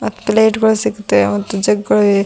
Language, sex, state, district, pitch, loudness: Kannada, female, Karnataka, Bidar, 200 Hz, -14 LUFS